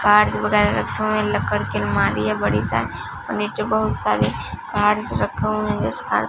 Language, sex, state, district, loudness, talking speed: Hindi, female, Punjab, Fazilka, -20 LUFS, 180 wpm